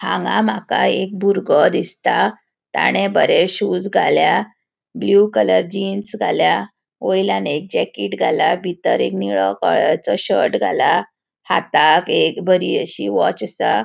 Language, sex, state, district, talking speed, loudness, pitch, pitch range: Konkani, female, Goa, North and South Goa, 125 wpm, -17 LUFS, 190 Hz, 175-200 Hz